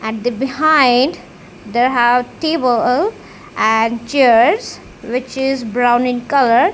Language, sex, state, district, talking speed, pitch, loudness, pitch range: English, female, Punjab, Kapurthala, 115 wpm, 245 Hz, -15 LUFS, 230-270 Hz